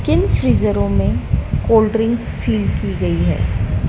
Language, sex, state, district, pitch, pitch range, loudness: Hindi, female, Madhya Pradesh, Dhar, 100 Hz, 85-110 Hz, -17 LUFS